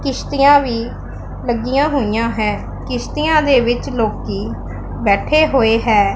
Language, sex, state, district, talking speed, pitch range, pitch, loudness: Punjabi, female, Punjab, Pathankot, 115 wpm, 230-285 Hz, 255 Hz, -16 LUFS